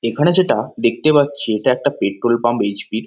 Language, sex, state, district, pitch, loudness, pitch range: Bengali, male, West Bengal, North 24 Parganas, 120 Hz, -16 LUFS, 110-145 Hz